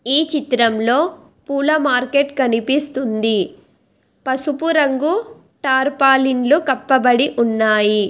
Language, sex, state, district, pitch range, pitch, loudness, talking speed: Telugu, female, Telangana, Hyderabad, 245-295 Hz, 265 Hz, -17 LUFS, 75 wpm